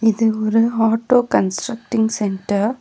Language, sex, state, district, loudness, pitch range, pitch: Tamil, female, Tamil Nadu, Nilgiris, -18 LUFS, 215-230 Hz, 225 Hz